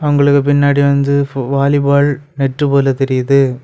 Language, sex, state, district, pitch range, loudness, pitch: Tamil, male, Tamil Nadu, Kanyakumari, 135-145 Hz, -13 LUFS, 140 Hz